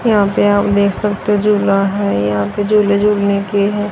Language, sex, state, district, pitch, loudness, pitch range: Hindi, female, Haryana, Jhajjar, 205 Hz, -14 LUFS, 200-205 Hz